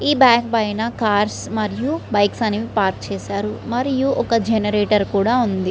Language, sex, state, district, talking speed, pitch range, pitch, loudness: Telugu, female, Andhra Pradesh, Srikakulam, 145 wpm, 205-240 Hz, 215 Hz, -19 LUFS